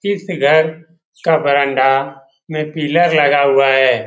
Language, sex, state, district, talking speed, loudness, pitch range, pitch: Hindi, male, Bihar, Jamui, 130 wpm, -14 LUFS, 135-160 Hz, 150 Hz